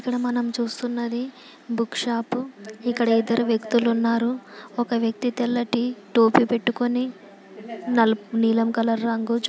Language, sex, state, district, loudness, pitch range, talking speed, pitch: Telugu, female, Telangana, Karimnagar, -23 LUFS, 225-245 Hz, 115 wpm, 235 Hz